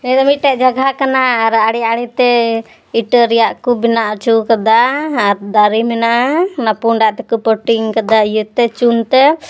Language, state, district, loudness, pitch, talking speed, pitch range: Santali, Jharkhand, Sahebganj, -13 LUFS, 230 Hz, 175 wpm, 225-255 Hz